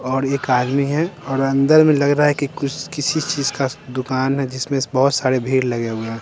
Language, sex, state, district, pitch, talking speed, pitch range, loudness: Hindi, male, Bihar, Patna, 135 Hz, 230 wpm, 130-145 Hz, -18 LUFS